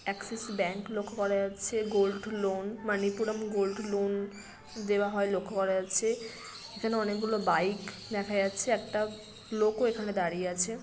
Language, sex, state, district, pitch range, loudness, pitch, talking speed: Bengali, female, West Bengal, Kolkata, 195-215 Hz, -31 LUFS, 205 Hz, 150 wpm